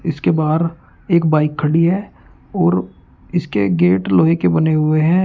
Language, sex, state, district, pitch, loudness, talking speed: Hindi, male, Uttar Pradesh, Shamli, 155 Hz, -16 LUFS, 160 wpm